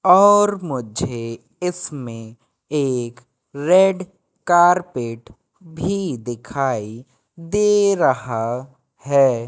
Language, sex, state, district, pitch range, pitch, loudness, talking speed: Hindi, male, Madhya Pradesh, Katni, 120-180 Hz, 135 Hz, -19 LUFS, 70 wpm